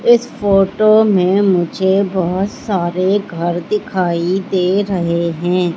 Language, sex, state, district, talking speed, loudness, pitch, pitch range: Hindi, female, Madhya Pradesh, Katni, 115 wpm, -15 LUFS, 190 Hz, 175-200 Hz